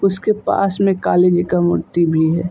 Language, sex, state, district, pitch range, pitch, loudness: Hindi, male, Uttar Pradesh, Budaun, 170-195 Hz, 180 Hz, -16 LUFS